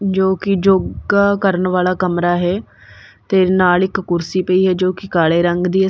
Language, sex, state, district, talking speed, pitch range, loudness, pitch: Punjabi, female, Punjab, Kapurthala, 175 wpm, 175-190 Hz, -16 LUFS, 185 Hz